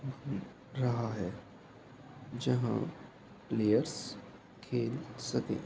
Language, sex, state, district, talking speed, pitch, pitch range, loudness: Hindi, male, Uttar Pradesh, Etah, 75 wpm, 125 Hz, 120-135 Hz, -35 LUFS